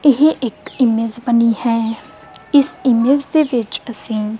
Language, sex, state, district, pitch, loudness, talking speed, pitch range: Punjabi, female, Punjab, Kapurthala, 240 Hz, -16 LUFS, 135 wpm, 230-280 Hz